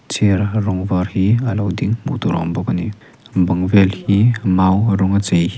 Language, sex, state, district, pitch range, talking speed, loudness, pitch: Mizo, male, Mizoram, Aizawl, 95-110 Hz, 235 wpm, -17 LUFS, 100 Hz